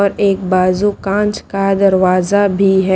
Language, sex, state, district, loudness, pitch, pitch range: Hindi, female, Haryana, Rohtak, -14 LUFS, 195 Hz, 190-200 Hz